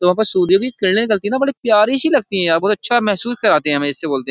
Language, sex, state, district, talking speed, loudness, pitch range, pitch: Hindi, male, Uttar Pradesh, Jyotiba Phule Nagar, 335 wpm, -16 LUFS, 180-240 Hz, 205 Hz